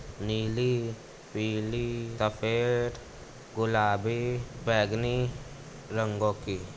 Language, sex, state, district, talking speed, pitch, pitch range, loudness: Hindi, male, Uttar Pradesh, Budaun, 70 wpm, 115 Hz, 110-120 Hz, -30 LUFS